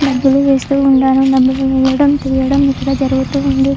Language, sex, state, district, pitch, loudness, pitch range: Telugu, female, Andhra Pradesh, Chittoor, 270 Hz, -12 LUFS, 265-275 Hz